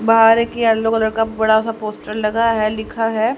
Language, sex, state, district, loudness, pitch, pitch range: Hindi, male, Haryana, Rohtak, -17 LUFS, 225 Hz, 220-225 Hz